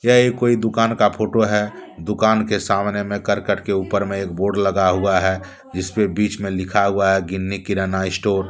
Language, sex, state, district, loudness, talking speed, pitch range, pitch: Hindi, male, Jharkhand, Deoghar, -19 LUFS, 210 wpm, 95-105 Hz, 100 Hz